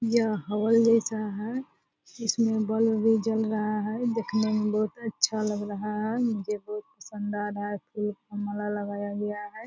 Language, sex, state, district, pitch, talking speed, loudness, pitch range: Hindi, female, Bihar, Purnia, 215 Hz, 180 wpm, -28 LUFS, 210-225 Hz